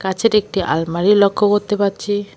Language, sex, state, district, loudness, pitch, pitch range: Bengali, female, West Bengal, Alipurduar, -16 LUFS, 205 Hz, 190-205 Hz